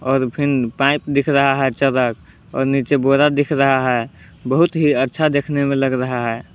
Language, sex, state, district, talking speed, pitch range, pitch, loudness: Hindi, male, Jharkhand, Palamu, 190 wpm, 130-140 Hz, 135 Hz, -17 LUFS